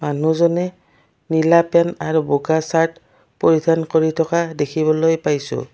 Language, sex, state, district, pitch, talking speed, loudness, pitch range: Assamese, female, Assam, Kamrup Metropolitan, 160 Hz, 115 wpm, -18 LUFS, 155-165 Hz